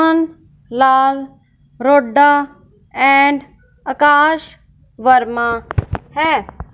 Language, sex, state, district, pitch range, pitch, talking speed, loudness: Hindi, female, Punjab, Fazilka, 260-290 Hz, 275 Hz, 55 wpm, -14 LUFS